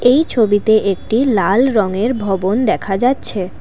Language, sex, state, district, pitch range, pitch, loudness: Bengali, female, Assam, Kamrup Metropolitan, 195-245 Hz, 220 Hz, -15 LUFS